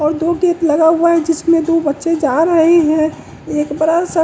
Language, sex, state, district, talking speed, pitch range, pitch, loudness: Hindi, male, Bihar, West Champaran, 210 wpm, 310-335 Hz, 325 Hz, -14 LUFS